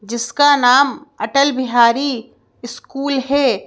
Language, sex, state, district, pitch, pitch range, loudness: Hindi, female, Madhya Pradesh, Bhopal, 260 Hz, 235-280 Hz, -15 LUFS